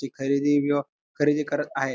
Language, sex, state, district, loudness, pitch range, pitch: Marathi, male, Maharashtra, Pune, -24 LUFS, 135-145 Hz, 145 Hz